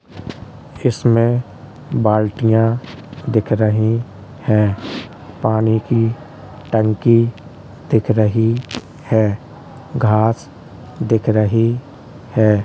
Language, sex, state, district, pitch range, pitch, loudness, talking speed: Hindi, male, Uttar Pradesh, Hamirpur, 110-125 Hz, 115 Hz, -17 LUFS, 75 wpm